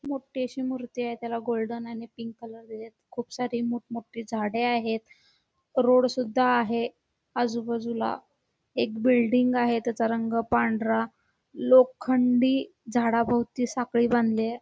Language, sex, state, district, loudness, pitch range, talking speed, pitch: Marathi, female, Karnataka, Belgaum, -26 LUFS, 230-250 Hz, 135 wpm, 235 Hz